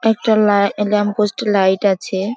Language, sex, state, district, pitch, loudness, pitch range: Bengali, female, West Bengal, Jhargram, 205 Hz, -16 LUFS, 200-215 Hz